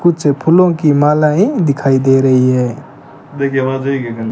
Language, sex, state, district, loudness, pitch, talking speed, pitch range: Hindi, male, Rajasthan, Bikaner, -13 LUFS, 140 Hz, 125 wpm, 130-150 Hz